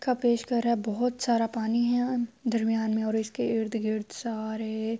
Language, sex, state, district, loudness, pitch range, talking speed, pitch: Urdu, female, Andhra Pradesh, Anantapur, -28 LUFS, 220-240 Hz, 180 wpm, 230 Hz